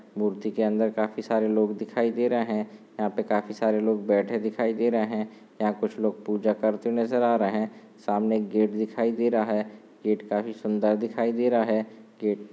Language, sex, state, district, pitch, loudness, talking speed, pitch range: Hindi, male, Maharashtra, Nagpur, 110 Hz, -26 LUFS, 215 wpm, 105-115 Hz